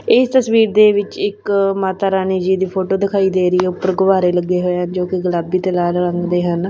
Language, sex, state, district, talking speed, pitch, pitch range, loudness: Punjabi, female, Punjab, Fazilka, 240 wpm, 190 Hz, 180-195 Hz, -16 LUFS